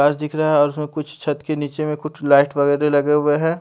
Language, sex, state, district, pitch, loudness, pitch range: Hindi, male, Haryana, Charkhi Dadri, 150 Hz, -18 LUFS, 145-155 Hz